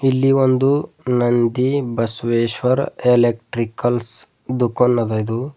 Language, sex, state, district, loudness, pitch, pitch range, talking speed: Kannada, male, Karnataka, Bidar, -18 LUFS, 120 Hz, 115-130 Hz, 85 wpm